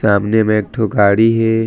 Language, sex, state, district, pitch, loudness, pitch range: Chhattisgarhi, male, Chhattisgarh, Raigarh, 110 Hz, -14 LUFS, 105-115 Hz